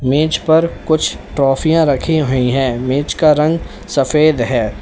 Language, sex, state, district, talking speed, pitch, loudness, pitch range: Hindi, male, Uttar Pradesh, Lalitpur, 150 wpm, 150 Hz, -14 LUFS, 135-160 Hz